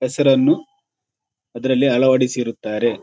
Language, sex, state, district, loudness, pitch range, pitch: Kannada, male, Karnataka, Shimoga, -18 LUFS, 120-140 Hz, 130 Hz